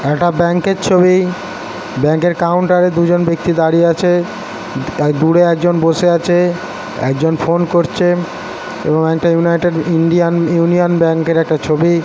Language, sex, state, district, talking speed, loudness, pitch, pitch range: Bengali, male, West Bengal, Jhargram, 135 wpm, -13 LUFS, 170 Hz, 165-175 Hz